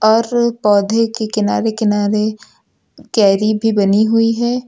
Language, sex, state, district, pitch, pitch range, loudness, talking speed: Hindi, male, Uttar Pradesh, Lucknow, 215 Hz, 210-230 Hz, -15 LUFS, 130 wpm